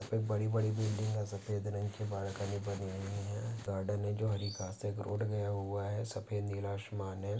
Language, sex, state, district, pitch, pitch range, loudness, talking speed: Hindi, male, Maharashtra, Pune, 105 Hz, 100-105 Hz, -38 LUFS, 220 wpm